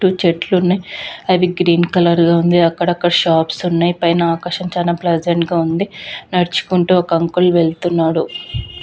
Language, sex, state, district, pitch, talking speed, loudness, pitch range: Telugu, female, Andhra Pradesh, Visakhapatnam, 175 Hz, 150 wpm, -15 LUFS, 170-180 Hz